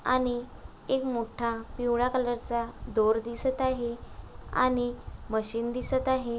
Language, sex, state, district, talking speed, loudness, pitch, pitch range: Marathi, female, Maharashtra, Aurangabad, 120 wpm, -30 LUFS, 240 Hz, 235-255 Hz